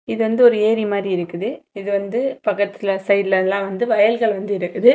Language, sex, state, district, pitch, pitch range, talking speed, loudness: Tamil, female, Tamil Nadu, Kanyakumari, 200 Hz, 195-225 Hz, 180 wpm, -19 LUFS